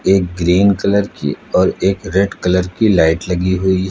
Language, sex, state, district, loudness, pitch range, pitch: Hindi, male, Uttar Pradesh, Lucknow, -15 LUFS, 90-100 Hz, 95 Hz